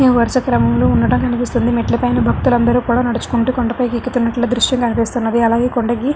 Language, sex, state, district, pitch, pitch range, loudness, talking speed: Telugu, female, Andhra Pradesh, Srikakulam, 240 Hz, 235-245 Hz, -15 LUFS, 175 wpm